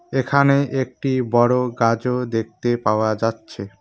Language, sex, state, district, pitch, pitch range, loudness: Bengali, male, West Bengal, Cooch Behar, 120 Hz, 115-130 Hz, -20 LUFS